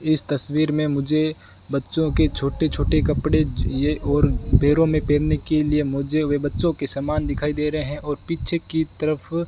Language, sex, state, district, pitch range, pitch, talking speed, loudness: Hindi, male, Rajasthan, Bikaner, 145-155 Hz, 150 Hz, 190 wpm, -22 LUFS